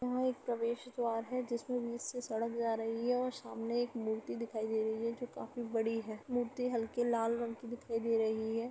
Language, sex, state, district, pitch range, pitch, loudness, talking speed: Hindi, female, Uttar Pradesh, Etah, 225-245 Hz, 235 Hz, -37 LUFS, 235 wpm